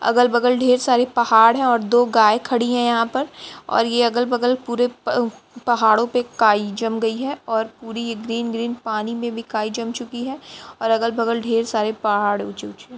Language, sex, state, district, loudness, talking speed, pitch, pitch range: Hindi, female, Bihar, Lakhisarai, -19 LUFS, 190 wpm, 235 Hz, 225-245 Hz